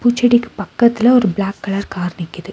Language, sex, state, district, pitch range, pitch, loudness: Tamil, female, Tamil Nadu, Nilgiris, 185-240 Hz, 200 Hz, -16 LUFS